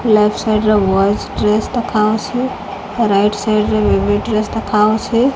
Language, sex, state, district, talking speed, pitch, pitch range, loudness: Odia, female, Odisha, Khordha, 145 wpm, 215 Hz, 210-220 Hz, -15 LUFS